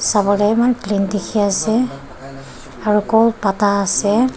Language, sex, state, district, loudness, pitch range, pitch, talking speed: Nagamese, female, Nagaland, Dimapur, -16 LUFS, 200-225 Hz, 205 Hz, 150 wpm